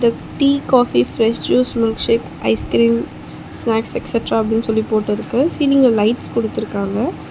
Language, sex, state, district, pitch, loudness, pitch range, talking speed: Tamil, female, Tamil Nadu, Chennai, 225 Hz, -17 LUFS, 210-245 Hz, 130 wpm